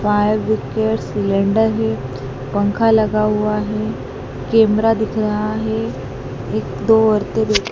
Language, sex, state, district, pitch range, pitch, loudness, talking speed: Hindi, female, Madhya Pradesh, Dhar, 195-220 Hz, 210 Hz, -18 LUFS, 125 wpm